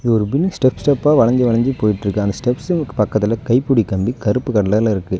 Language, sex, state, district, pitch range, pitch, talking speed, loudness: Tamil, male, Tamil Nadu, Nilgiris, 105-130 Hz, 115 Hz, 175 wpm, -17 LUFS